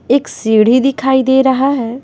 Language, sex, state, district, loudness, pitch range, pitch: Hindi, female, Bihar, West Champaran, -12 LUFS, 240-270 Hz, 265 Hz